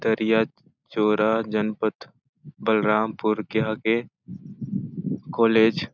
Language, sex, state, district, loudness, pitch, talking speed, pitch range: Awadhi, male, Chhattisgarh, Balrampur, -24 LUFS, 110 Hz, 80 wpm, 110-115 Hz